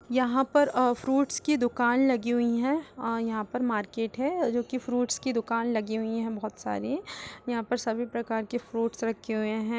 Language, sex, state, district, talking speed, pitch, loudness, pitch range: Hindi, female, Uttar Pradesh, Etah, 195 wpm, 240 Hz, -28 LUFS, 225-250 Hz